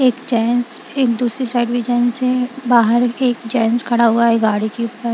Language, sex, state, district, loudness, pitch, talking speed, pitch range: Hindi, female, Punjab, Kapurthala, -16 LUFS, 240 Hz, 210 wpm, 235-250 Hz